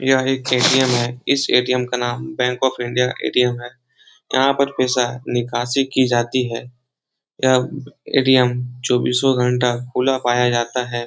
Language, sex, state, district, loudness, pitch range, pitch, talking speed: Hindi, male, Bihar, Jahanabad, -18 LUFS, 120-130 Hz, 125 Hz, 150 wpm